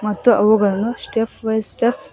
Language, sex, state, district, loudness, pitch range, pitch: Kannada, female, Karnataka, Koppal, -17 LUFS, 210-235 Hz, 220 Hz